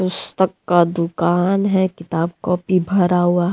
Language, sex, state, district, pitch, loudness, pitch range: Hindi, female, Jharkhand, Deoghar, 180 Hz, -18 LUFS, 175-185 Hz